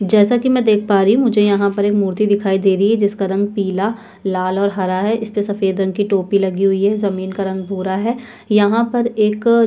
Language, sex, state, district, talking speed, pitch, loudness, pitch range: Hindi, female, Chhattisgarh, Sukma, 235 wpm, 205 Hz, -16 LUFS, 195-215 Hz